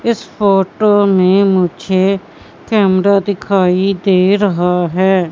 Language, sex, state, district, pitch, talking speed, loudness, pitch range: Hindi, female, Madhya Pradesh, Katni, 195 Hz, 100 wpm, -13 LUFS, 185-200 Hz